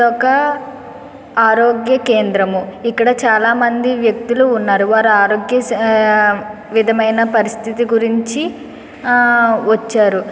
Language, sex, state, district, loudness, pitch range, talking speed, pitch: Telugu, female, Andhra Pradesh, Srikakulam, -14 LUFS, 215-240 Hz, 95 wpm, 225 Hz